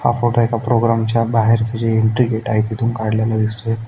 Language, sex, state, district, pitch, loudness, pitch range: Marathi, male, Maharashtra, Aurangabad, 115 Hz, -17 LUFS, 110-115 Hz